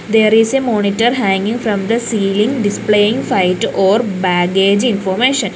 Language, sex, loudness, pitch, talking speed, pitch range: English, female, -14 LUFS, 210 Hz, 140 wpm, 195-235 Hz